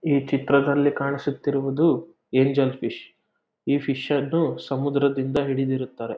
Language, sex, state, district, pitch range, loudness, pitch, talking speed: Kannada, male, Karnataka, Mysore, 135-145 Hz, -23 LUFS, 140 Hz, 95 wpm